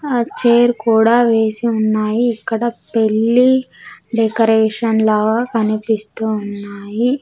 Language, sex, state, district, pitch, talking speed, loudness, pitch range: Telugu, female, Andhra Pradesh, Sri Satya Sai, 225 Hz, 90 wpm, -15 LUFS, 215-235 Hz